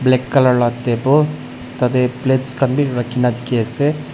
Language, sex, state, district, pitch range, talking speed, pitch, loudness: Nagamese, male, Nagaland, Dimapur, 120-135 Hz, 160 wpm, 125 Hz, -17 LUFS